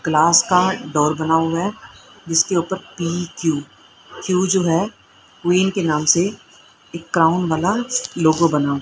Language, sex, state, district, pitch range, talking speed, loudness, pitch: Hindi, female, Haryana, Rohtak, 160-185 Hz, 145 wpm, -18 LUFS, 170 Hz